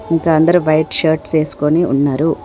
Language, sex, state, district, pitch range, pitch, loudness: Telugu, female, Telangana, Komaram Bheem, 150-165 Hz, 155 Hz, -14 LUFS